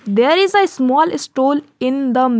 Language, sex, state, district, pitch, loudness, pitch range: English, female, Jharkhand, Garhwa, 270 Hz, -15 LUFS, 255-315 Hz